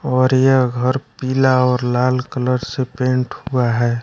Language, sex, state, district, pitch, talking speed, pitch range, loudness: Hindi, male, Bihar, West Champaran, 130 Hz, 165 wpm, 125-130 Hz, -17 LUFS